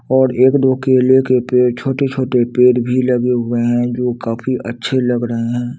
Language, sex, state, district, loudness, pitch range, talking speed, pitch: Hindi, male, Chandigarh, Chandigarh, -15 LUFS, 120-130 Hz, 175 wpm, 125 Hz